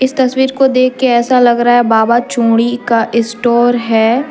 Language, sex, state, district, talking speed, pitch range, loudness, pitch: Hindi, female, Jharkhand, Deoghar, 195 wpm, 235-255 Hz, -11 LUFS, 240 Hz